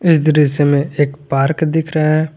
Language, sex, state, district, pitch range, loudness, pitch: Hindi, male, Jharkhand, Garhwa, 145-160 Hz, -15 LUFS, 155 Hz